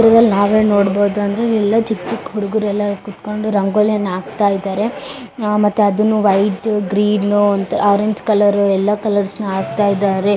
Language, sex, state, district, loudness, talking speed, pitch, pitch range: Kannada, female, Karnataka, Bellary, -16 LUFS, 150 wpm, 205 Hz, 200-215 Hz